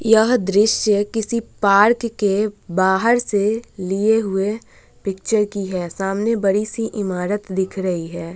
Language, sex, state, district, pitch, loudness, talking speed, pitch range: Hindi, female, Bihar, Vaishali, 205 Hz, -19 LUFS, 135 wpm, 190-220 Hz